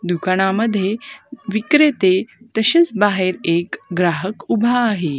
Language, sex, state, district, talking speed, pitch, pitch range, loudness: Marathi, female, Maharashtra, Gondia, 90 wpm, 205 Hz, 185-235 Hz, -17 LUFS